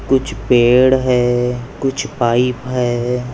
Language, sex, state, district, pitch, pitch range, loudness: Hindi, male, Maharashtra, Chandrapur, 125 Hz, 120-130 Hz, -15 LUFS